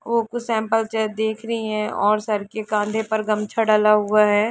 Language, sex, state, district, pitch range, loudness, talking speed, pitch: Hindi, female, Jharkhand, Sahebganj, 210-225 Hz, -21 LUFS, 225 wpm, 215 Hz